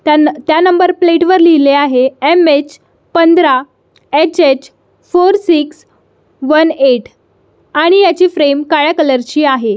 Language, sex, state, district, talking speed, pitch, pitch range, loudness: Marathi, female, Maharashtra, Solapur, 140 wpm, 310 Hz, 285-345 Hz, -10 LUFS